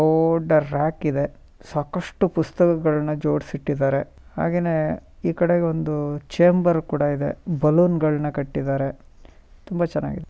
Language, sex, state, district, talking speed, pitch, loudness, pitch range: Kannada, male, Karnataka, Shimoga, 100 wpm, 155 Hz, -22 LUFS, 145-170 Hz